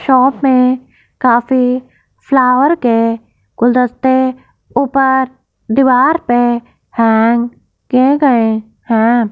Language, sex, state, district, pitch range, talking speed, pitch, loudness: Hindi, female, Punjab, Fazilka, 235-265 Hz, 85 wpm, 250 Hz, -12 LUFS